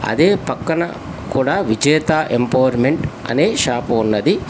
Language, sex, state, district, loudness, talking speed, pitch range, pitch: Telugu, male, Telangana, Hyderabad, -17 LUFS, 105 wpm, 120-155 Hz, 130 Hz